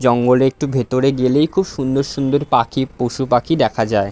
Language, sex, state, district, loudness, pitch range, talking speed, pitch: Bengali, male, West Bengal, Dakshin Dinajpur, -17 LUFS, 125-140 Hz, 175 wpm, 130 Hz